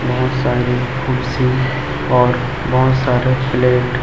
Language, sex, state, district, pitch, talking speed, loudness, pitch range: Hindi, male, Chhattisgarh, Raipur, 125 Hz, 120 wpm, -16 LUFS, 125-130 Hz